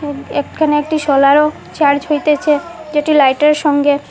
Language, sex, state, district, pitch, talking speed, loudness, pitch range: Bengali, female, Assam, Hailakandi, 295 Hz, 90 wpm, -13 LUFS, 285-300 Hz